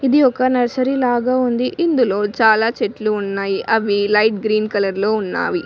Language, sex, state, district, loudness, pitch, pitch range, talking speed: Telugu, female, Telangana, Mahabubabad, -17 LUFS, 225 Hz, 210-255 Hz, 160 wpm